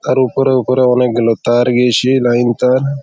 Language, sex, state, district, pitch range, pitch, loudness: Bengali, male, West Bengal, Malda, 120-130 Hz, 125 Hz, -13 LUFS